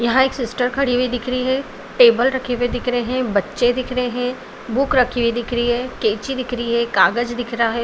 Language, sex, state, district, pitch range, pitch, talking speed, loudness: Hindi, female, Maharashtra, Aurangabad, 235-255 Hz, 245 Hz, 245 wpm, -19 LUFS